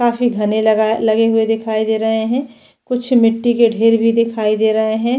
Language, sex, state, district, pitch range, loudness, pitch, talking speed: Hindi, female, Chhattisgarh, Jashpur, 220-235 Hz, -15 LUFS, 225 Hz, 210 wpm